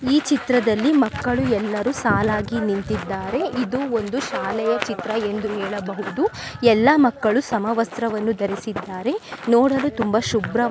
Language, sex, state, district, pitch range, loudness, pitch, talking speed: Kannada, female, Karnataka, Mysore, 210-255 Hz, -21 LUFS, 230 Hz, 105 wpm